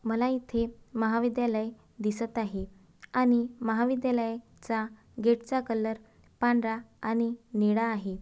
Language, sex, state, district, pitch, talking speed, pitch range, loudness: Marathi, female, Maharashtra, Dhule, 230 Hz, 110 wpm, 220-240 Hz, -30 LUFS